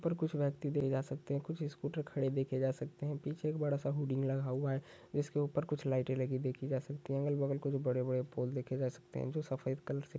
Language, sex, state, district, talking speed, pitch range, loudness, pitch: Hindi, male, Chhattisgarh, Sukma, 260 wpm, 130-145 Hz, -37 LUFS, 140 Hz